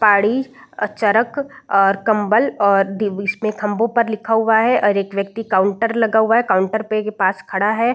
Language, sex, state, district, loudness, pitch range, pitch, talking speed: Hindi, female, Bihar, Saran, -17 LUFS, 200-225 Hz, 215 Hz, 195 wpm